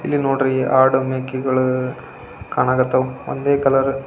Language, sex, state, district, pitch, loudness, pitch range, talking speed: Kannada, male, Karnataka, Belgaum, 130 Hz, -18 LUFS, 130-135 Hz, 135 wpm